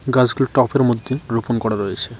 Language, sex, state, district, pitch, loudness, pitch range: Bengali, male, West Bengal, Cooch Behar, 120 Hz, -19 LUFS, 115-130 Hz